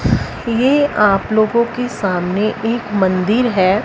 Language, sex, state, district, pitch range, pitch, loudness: Hindi, female, Punjab, Fazilka, 185-235 Hz, 210 Hz, -16 LUFS